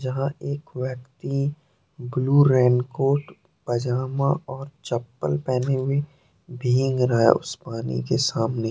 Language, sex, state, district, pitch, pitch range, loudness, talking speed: Hindi, male, Jharkhand, Deoghar, 130 Hz, 125-140 Hz, -23 LUFS, 110 wpm